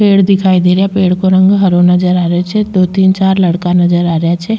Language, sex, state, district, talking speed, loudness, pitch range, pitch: Rajasthani, female, Rajasthan, Churu, 260 wpm, -10 LUFS, 180-195 Hz, 185 Hz